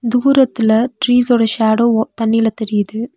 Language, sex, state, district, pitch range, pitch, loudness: Tamil, female, Tamil Nadu, Nilgiris, 220-245 Hz, 230 Hz, -14 LUFS